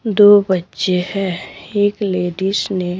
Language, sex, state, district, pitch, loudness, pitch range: Hindi, female, Bihar, Patna, 190 Hz, -16 LUFS, 180-205 Hz